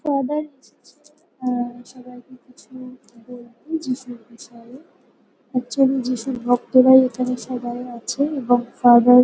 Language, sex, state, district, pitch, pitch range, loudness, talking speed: Bengali, female, West Bengal, North 24 Parganas, 250 Hz, 245-260 Hz, -19 LUFS, 110 wpm